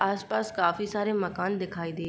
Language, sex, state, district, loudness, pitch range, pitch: Hindi, female, Uttar Pradesh, Jyotiba Phule Nagar, -29 LUFS, 170-200 Hz, 185 Hz